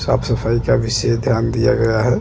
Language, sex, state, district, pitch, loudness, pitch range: Hindi, male, Chhattisgarh, Jashpur, 115 Hz, -17 LUFS, 115-125 Hz